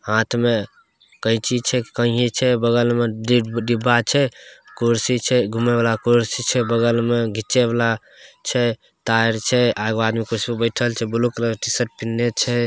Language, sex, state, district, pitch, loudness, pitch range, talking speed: Maithili, male, Bihar, Samastipur, 120 Hz, -19 LUFS, 115-120 Hz, 170 wpm